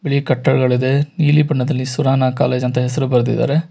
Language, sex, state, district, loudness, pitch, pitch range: Kannada, male, Karnataka, Bangalore, -16 LUFS, 135 Hz, 125-145 Hz